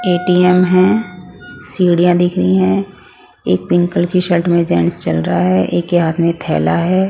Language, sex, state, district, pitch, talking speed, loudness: Hindi, female, Punjab, Pathankot, 175 Hz, 195 wpm, -14 LUFS